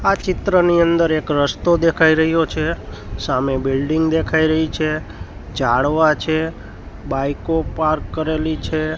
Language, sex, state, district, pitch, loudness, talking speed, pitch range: Gujarati, male, Gujarat, Gandhinagar, 155 Hz, -18 LUFS, 125 wpm, 135-160 Hz